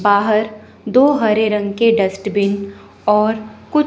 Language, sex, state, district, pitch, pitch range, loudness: Hindi, male, Chandigarh, Chandigarh, 215 Hz, 205-220 Hz, -16 LUFS